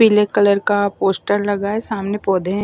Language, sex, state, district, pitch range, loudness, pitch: Hindi, female, Maharashtra, Washim, 200-210 Hz, -18 LUFS, 205 Hz